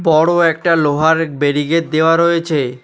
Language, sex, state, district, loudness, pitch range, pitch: Bengali, male, West Bengal, Alipurduar, -14 LUFS, 150-165 Hz, 160 Hz